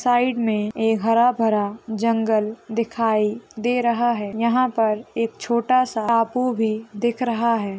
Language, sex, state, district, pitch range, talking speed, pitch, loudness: Hindi, female, Chhattisgarh, Korba, 220-240 Hz, 155 wpm, 230 Hz, -21 LUFS